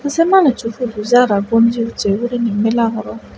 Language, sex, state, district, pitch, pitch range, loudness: Chakma, female, Tripura, West Tripura, 230 Hz, 225-245 Hz, -15 LUFS